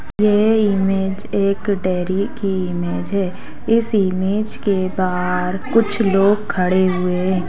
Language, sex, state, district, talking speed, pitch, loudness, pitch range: Hindi, female, Bihar, Sitamarhi, 130 wpm, 195 Hz, -18 LUFS, 185-205 Hz